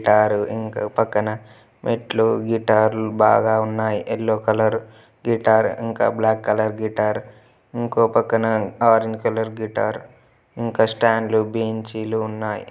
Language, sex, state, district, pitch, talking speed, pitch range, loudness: Telugu, male, Telangana, Nalgonda, 110 Hz, 120 wpm, 110-115 Hz, -20 LUFS